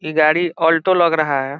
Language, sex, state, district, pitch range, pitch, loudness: Hindi, male, Bihar, Saran, 155-170 Hz, 160 Hz, -16 LUFS